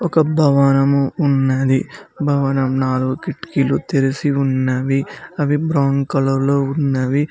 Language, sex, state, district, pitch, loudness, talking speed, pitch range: Telugu, male, Telangana, Mahabubabad, 140 Hz, -17 LUFS, 105 wpm, 135-145 Hz